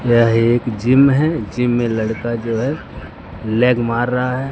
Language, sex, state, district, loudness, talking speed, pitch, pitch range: Hindi, male, Uttar Pradesh, Lucknow, -16 LUFS, 170 wpm, 120 Hz, 115-125 Hz